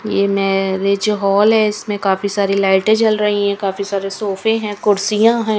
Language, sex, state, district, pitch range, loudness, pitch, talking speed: Hindi, female, Haryana, Rohtak, 195-215 Hz, -16 LUFS, 205 Hz, 180 wpm